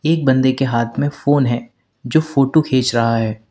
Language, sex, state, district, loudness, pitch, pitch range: Hindi, male, Uttar Pradesh, Lalitpur, -17 LUFS, 130 Hz, 115-145 Hz